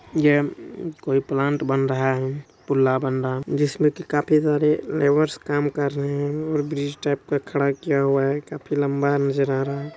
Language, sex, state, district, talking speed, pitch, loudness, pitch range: Hindi, male, Bihar, Supaul, 200 wpm, 145 Hz, -22 LUFS, 140-150 Hz